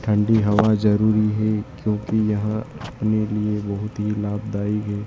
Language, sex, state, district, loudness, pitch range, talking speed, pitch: Hindi, male, Madhya Pradesh, Dhar, -21 LUFS, 105-110 Hz, 140 wpm, 105 Hz